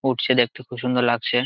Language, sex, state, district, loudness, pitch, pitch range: Bengali, male, West Bengal, Jalpaiguri, -21 LUFS, 125 Hz, 120-125 Hz